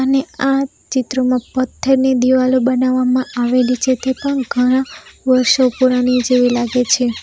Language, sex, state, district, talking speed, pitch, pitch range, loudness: Gujarati, female, Gujarat, Valsad, 135 wpm, 255 Hz, 250-260 Hz, -15 LUFS